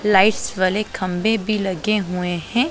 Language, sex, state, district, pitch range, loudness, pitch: Hindi, female, Punjab, Pathankot, 185-215 Hz, -20 LUFS, 205 Hz